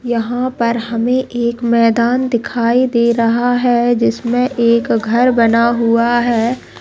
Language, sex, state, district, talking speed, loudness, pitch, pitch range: Hindi, female, Chhattisgarh, Sukma, 130 wpm, -14 LUFS, 235 Hz, 235-245 Hz